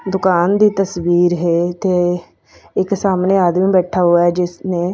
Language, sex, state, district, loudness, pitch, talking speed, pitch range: Punjabi, female, Punjab, Fazilka, -15 LUFS, 180 Hz, 145 wpm, 175-190 Hz